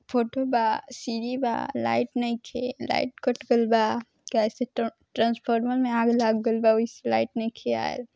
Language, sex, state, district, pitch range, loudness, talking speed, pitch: Bhojpuri, female, Bihar, East Champaran, 225-245 Hz, -26 LUFS, 170 wpm, 230 Hz